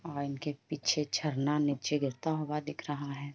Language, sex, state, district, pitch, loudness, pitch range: Hindi, female, Chhattisgarh, Raigarh, 145 Hz, -33 LUFS, 140-150 Hz